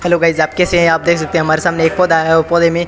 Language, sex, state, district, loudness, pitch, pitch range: Hindi, male, Rajasthan, Bikaner, -13 LUFS, 170 Hz, 160-170 Hz